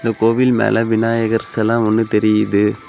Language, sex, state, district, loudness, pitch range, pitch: Tamil, male, Tamil Nadu, Kanyakumari, -16 LUFS, 110-115 Hz, 115 Hz